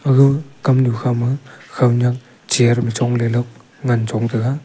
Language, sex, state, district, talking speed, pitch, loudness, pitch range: Wancho, male, Arunachal Pradesh, Longding, 155 wpm, 120 Hz, -17 LUFS, 120-130 Hz